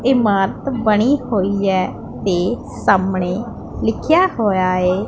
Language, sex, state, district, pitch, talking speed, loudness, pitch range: Punjabi, female, Punjab, Pathankot, 200 Hz, 105 wpm, -17 LUFS, 185-240 Hz